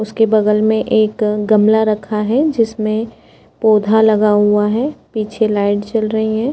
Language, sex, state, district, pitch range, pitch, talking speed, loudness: Hindi, female, Chhattisgarh, Korba, 210-220 Hz, 215 Hz, 155 wpm, -15 LUFS